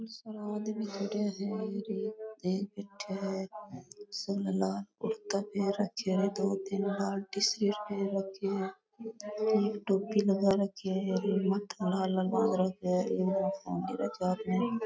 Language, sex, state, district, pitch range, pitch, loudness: Rajasthani, female, Rajasthan, Nagaur, 195-210 Hz, 200 Hz, -33 LUFS